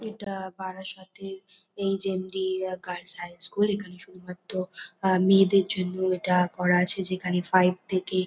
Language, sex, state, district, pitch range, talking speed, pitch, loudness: Bengali, female, West Bengal, North 24 Parganas, 180-195 Hz, 140 wpm, 185 Hz, -25 LUFS